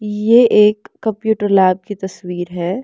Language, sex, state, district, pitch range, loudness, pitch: Hindi, female, Bihar, West Champaran, 185-215 Hz, -15 LUFS, 205 Hz